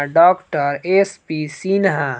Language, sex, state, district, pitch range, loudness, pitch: Hindi, male, Jharkhand, Palamu, 145-190 Hz, -17 LUFS, 165 Hz